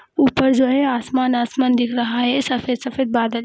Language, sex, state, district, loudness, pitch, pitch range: Hindi, female, Bihar, Darbhanga, -18 LUFS, 255 Hz, 240-265 Hz